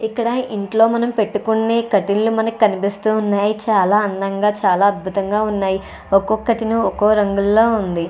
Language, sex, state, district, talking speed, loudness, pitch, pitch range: Telugu, female, Andhra Pradesh, Chittoor, 125 wpm, -17 LUFS, 210 Hz, 200-225 Hz